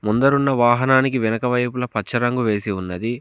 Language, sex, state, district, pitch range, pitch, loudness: Telugu, male, Telangana, Komaram Bheem, 110-125 Hz, 120 Hz, -19 LUFS